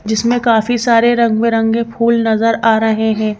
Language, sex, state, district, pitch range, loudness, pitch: Hindi, female, Madhya Pradesh, Bhopal, 220-235 Hz, -13 LUFS, 230 Hz